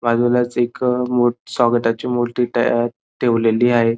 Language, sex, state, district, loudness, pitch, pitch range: Marathi, male, Maharashtra, Dhule, -18 LUFS, 120 Hz, 120-125 Hz